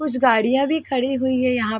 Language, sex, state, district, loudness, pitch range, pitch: Hindi, female, Chhattisgarh, Korba, -19 LUFS, 250-270 Hz, 260 Hz